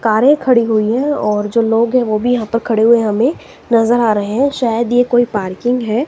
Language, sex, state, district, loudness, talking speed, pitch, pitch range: Hindi, female, Himachal Pradesh, Shimla, -14 LUFS, 235 wpm, 235 Hz, 220-245 Hz